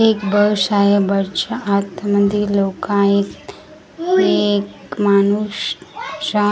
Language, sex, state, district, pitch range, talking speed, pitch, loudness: Marathi, female, Maharashtra, Gondia, 200-210 Hz, 120 wpm, 205 Hz, -17 LUFS